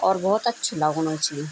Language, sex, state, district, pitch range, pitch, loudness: Garhwali, female, Uttarakhand, Tehri Garhwal, 155-205 Hz, 155 Hz, -23 LUFS